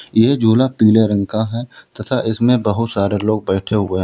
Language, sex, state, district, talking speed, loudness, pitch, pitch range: Hindi, male, Uttar Pradesh, Lalitpur, 210 wpm, -16 LUFS, 110 Hz, 105-115 Hz